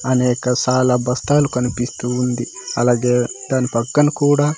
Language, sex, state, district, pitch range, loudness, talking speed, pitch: Telugu, male, Andhra Pradesh, Manyam, 125-130 Hz, -18 LUFS, 120 wpm, 125 Hz